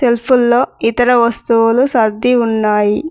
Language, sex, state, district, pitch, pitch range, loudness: Telugu, female, Telangana, Mahabubabad, 235 Hz, 225-245 Hz, -13 LUFS